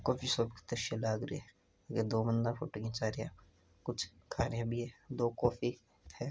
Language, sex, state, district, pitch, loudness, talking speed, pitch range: Hindi, male, Rajasthan, Nagaur, 115 Hz, -37 LUFS, 150 wpm, 110-120 Hz